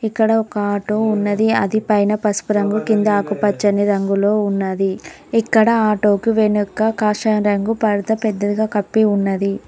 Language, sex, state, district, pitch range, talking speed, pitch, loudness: Telugu, female, Telangana, Mahabubabad, 205-220 Hz, 130 wpm, 210 Hz, -17 LUFS